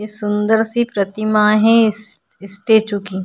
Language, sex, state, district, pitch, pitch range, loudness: Hindi, female, Maharashtra, Chandrapur, 215 Hz, 205-220 Hz, -16 LUFS